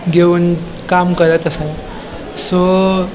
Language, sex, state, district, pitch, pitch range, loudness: Konkani, male, Goa, North and South Goa, 175 Hz, 170-180 Hz, -14 LUFS